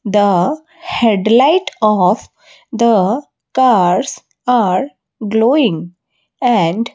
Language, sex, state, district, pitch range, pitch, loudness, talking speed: English, female, Odisha, Malkangiri, 195-255 Hz, 225 Hz, -14 LUFS, 80 wpm